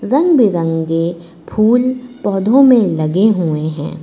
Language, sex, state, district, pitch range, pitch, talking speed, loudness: Hindi, female, Uttar Pradesh, Lucknow, 165-250 Hz, 195 Hz, 120 wpm, -14 LUFS